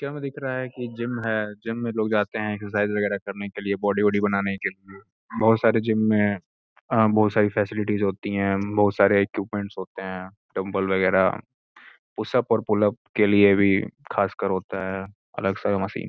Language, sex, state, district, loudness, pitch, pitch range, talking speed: Hindi, male, Uttar Pradesh, Gorakhpur, -24 LUFS, 105 Hz, 100-110 Hz, 190 wpm